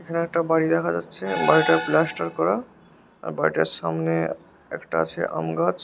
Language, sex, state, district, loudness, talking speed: Bengali, male, West Bengal, Jhargram, -23 LUFS, 155 wpm